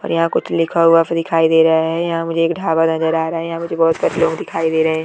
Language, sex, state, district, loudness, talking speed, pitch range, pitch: Hindi, female, West Bengal, Jalpaiguri, -16 LUFS, 320 wpm, 160-165 Hz, 165 Hz